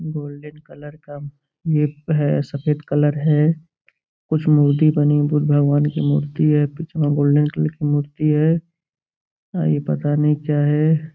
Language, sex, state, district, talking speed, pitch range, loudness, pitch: Hindi, male, Uttar Pradesh, Gorakhpur, 140 wpm, 145-155 Hz, -19 LUFS, 150 Hz